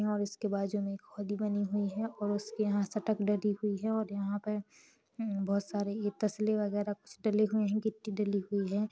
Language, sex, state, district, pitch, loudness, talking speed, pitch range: Hindi, female, Chhattisgarh, Rajnandgaon, 205 Hz, -34 LUFS, 215 wpm, 205-215 Hz